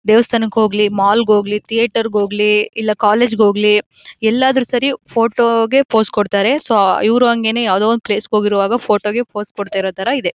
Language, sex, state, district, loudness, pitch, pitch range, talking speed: Kannada, female, Karnataka, Mysore, -14 LUFS, 220 Hz, 210-235 Hz, 185 wpm